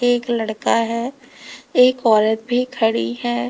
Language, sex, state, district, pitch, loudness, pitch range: Hindi, female, Uttar Pradesh, Lalitpur, 235 Hz, -18 LUFS, 220-255 Hz